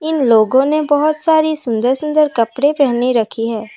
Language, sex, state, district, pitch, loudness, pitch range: Hindi, female, Assam, Kamrup Metropolitan, 270 Hz, -14 LUFS, 230-305 Hz